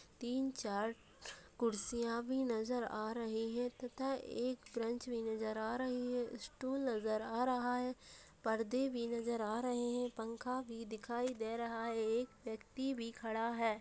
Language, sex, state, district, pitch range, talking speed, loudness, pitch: Hindi, female, Bihar, Purnia, 225-250 Hz, 175 wpm, -40 LUFS, 235 Hz